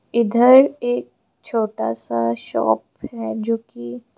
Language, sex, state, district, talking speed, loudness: Hindi, female, Arunachal Pradesh, Lower Dibang Valley, 115 wpm, -19 LUFS